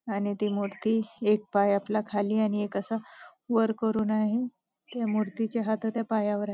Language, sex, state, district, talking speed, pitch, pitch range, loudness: Marathi, female, Maharashtra, Nagpur, 165 wpm, 215 Hz, 205-225 Hz, -28 LUFS